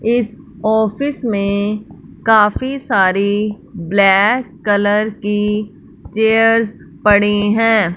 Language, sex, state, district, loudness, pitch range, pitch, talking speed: Hindi, female, Punjab, Fazilka, -15 LUFS, 205-225 Hz, 210 Hz, 85 wpm